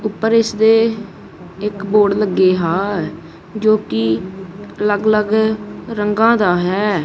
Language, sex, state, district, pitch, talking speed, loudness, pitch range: Punjabi, male, Punjab, Kapurthala, 210 Hz, 110 wpm, -16 LUFS, 185-215 Hz